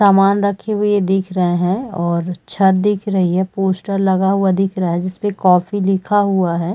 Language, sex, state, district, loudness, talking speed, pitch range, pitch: Hindi, female, Chhattisgarh, Rajnandgaon, -16 LUFS, 195 wpm, 185-200 Hz, 190 Hz